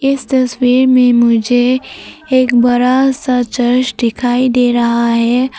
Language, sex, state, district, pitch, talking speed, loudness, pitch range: Hindi, female, Arunachal Pradesh, Papum Pare, 250 Hz, 130 wpm, -12 LUFS, 245-255 Hz